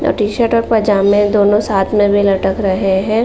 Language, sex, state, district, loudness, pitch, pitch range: Hindi, female, Uttar Pradesh, Jalaun, -13 LUFS, 205 Hz, 195-210 Hz